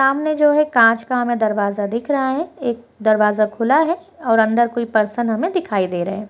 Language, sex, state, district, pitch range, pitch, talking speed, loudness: Hindi, female, Bihar, Muzaffarpur, 215-280 Hz, 235 Hz, 230 wpm, -18 LUFS